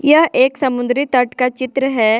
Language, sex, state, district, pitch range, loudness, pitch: Hindi, female, Jharkhand, Ranchi, 250-270 Hz, -15 LUFS, 260 Hz